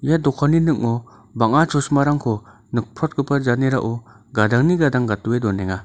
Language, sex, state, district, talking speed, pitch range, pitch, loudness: Garo, male, Meghalaya, North Garo Hills, 115 wpm, 110-145 Hz, 120 Hz, -19 LUFS